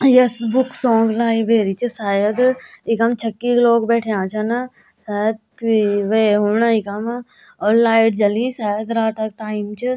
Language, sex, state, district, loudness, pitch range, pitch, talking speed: Garhwali, female, Uttarakhand, Tehri Garhwal, -18 LUFS, 215-235 Hz, 225 Hz, 140 wpm